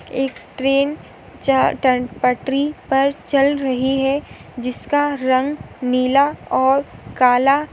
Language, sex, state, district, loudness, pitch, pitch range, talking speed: Hindi, female, Maharashtra, Sindhudurg, -18 LUFS, 270 Hz, 255-280 Hz, 110 wpm